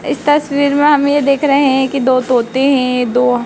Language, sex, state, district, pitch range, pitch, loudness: Hindi, female, Madhya Pradesh, Dhar, 255-285 Hz, 275 Hz, -13 LUFS